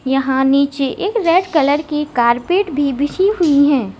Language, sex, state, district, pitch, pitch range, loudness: Hindi, female, Uttar Pradesh, Lalitpur, 285 Hz, 270-335 Hz, -15 LUFS